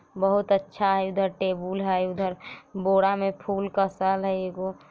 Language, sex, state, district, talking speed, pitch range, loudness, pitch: Bajjika, female, Bihar, Vaishali, 160 wpm, 190-195 Hz, -26 LUFS, 195 Hz